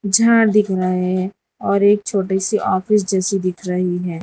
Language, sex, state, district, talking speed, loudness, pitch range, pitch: Hindi, female, Gujarat, Valsad, 185 wpm, -17 LUFS, 185-205 Hz, 190 Hz